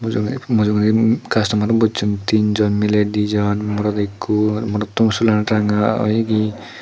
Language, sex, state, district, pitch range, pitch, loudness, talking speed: Chakma, male, Tripura, Dhalai, 105-110 Hz, 105 Hz, -18 LUFS, 115 wpm